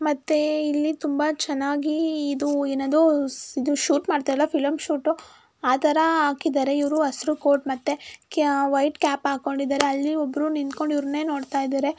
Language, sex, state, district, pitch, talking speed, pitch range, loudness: Kannada, female, Karnataka, Mysore, 295 Hz, 130 wpm, 280-310 Hz, -23 LUFS